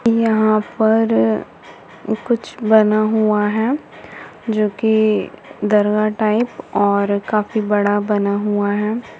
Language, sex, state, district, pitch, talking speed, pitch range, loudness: Hindi, female, Uttar Pradesh, Jalaun, 215 Hz, 100 wpm, 205-220 Hz, -17 LUFS